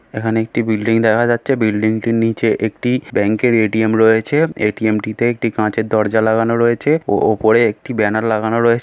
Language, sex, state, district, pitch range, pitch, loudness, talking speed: Bengali, male, West Bengal, Malda, 110-120 Hz, 110 Hz, -16 LUFS, 170 wpm